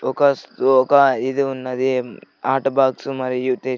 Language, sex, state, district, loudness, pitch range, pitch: Telugu, male, Andhra Pradesh, Sri Satya Sai, -19 LUFS, 130-135 Hz, 130 Hz